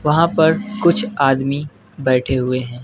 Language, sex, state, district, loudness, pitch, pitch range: Hindi, female, West Bengal, Alipurduar, -17 LUFS, 140 Hz, 130-165 Hz